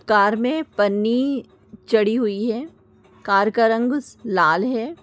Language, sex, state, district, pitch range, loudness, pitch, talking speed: Hindi, female, Chhattisgarh, Korba, 210-250 Hz, -20 LUFS, 225 Hz, 130 wpm